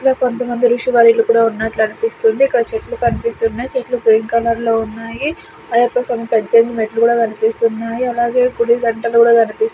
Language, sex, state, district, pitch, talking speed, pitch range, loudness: Telugu, female, Andhra Pradesh, Sri Satya Sai, 235 Hz, 160 wpm, 230-255 Hz, -15 LUFS